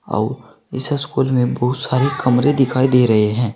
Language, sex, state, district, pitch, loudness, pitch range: Hindi, male, Uttar Pradesh, Saharanpur, 130 Hz, -17 LUFS, 125-135 Hz